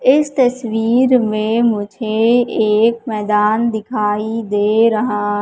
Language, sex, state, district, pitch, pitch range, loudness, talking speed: Hindi, female, Madhya Pradesh, Katni, 225 Hz, 210-235 Hz, -15 LUFS, 100 wpm